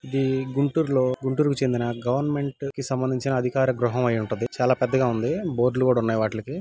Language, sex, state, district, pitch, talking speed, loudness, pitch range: Telugu, male, Andhra Pradesh, Guntur, 130 Hz, 180 wpm, -24 LUFS, 120-135 Hz